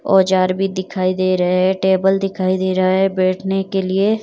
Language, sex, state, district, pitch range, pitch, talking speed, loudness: Hindi, female, Himachal Pradesh, Shimla, 185-195 Hz, 190 Hz, 215 wpm, -17 LUFS